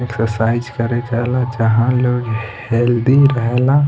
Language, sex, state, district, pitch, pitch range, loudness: Bhojpuri, male, Bihar, East Champaran, 120 Hz, 115-125 Hz, -16 LUFS